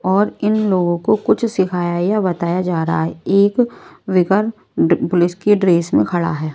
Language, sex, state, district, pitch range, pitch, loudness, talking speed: Hindi, female, Maharashtra, Washim, 175-210 Hz, 185 Hz, -17 LUFS, 175 wpm